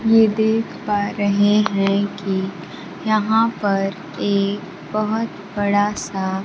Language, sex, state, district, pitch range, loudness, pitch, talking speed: Hindi, male, Bihar, Kaimur, 195-215 Hz, -20 LUFS, 205 Hz, 110 wpm